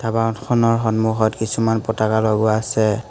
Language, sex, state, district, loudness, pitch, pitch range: Assamese, male, Assam, Hailakandi, -19 LUFS, 110 Hz, 110-115 Hz